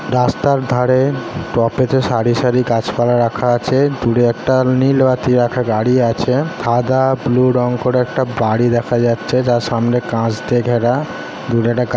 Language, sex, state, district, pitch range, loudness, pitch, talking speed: Bengali, male, West Bengal, Kolkata, 120-130 Hz, -15 LUFS, 125 Hz, 155 wpm